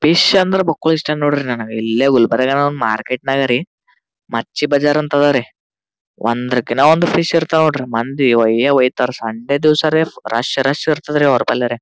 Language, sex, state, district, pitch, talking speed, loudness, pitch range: Kannada, male, Karnataka, Gulbarga, 135 Hz, 150 wpm, -15 LUFS, 120-150 Hz